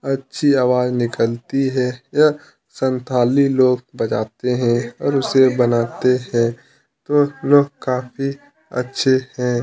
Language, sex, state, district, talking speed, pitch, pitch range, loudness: Hindi, male, Chhattisgarh, Kabirdham, 110 wpm, 130 Hz, 125-135 Hz, -18 LUFS